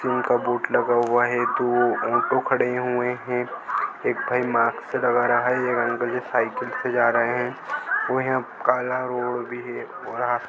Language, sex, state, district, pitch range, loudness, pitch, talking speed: Hindi, male, Goa, North and South Goa, 120-125 Hz, -23 LUFS, 120 Hz, 195 wpm